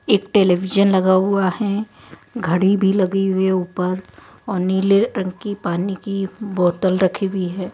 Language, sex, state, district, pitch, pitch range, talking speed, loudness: Hindi, female, Rajasthan, Jaipur, 190 Hz, 185-200 Hz, 155 wpm, -19 LUFS